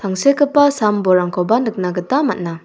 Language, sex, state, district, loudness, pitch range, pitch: Garo, female, Meghalaya, South Garo Hills, -16 LUFS, 180-280 Hz, 205 Hz